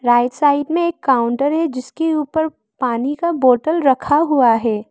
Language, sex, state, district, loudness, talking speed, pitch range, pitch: Hindi, female, Arunachal Pradesh, Lower Dibang Valley, -17 LUFS, 170 wpm, 245-315 Hz, 280 Hz